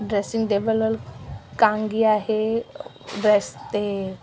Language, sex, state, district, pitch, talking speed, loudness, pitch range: Marathi, female, Maharashtra, Aurangabad, 215 Hz, 70 wpm, -22 LUFS, 205-220 Hz